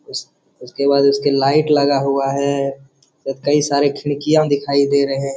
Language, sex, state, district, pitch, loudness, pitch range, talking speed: Hindi, male, Jharkhand, Jamtara, 140 Hz, -16 LUFS, 140-145 Hz, 155 wpm